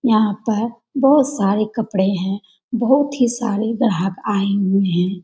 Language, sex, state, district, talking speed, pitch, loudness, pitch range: Hindi, female, Bihar, Jamui, 150 wpm, 215 Hz, -18 LUFS, 195-240 Hz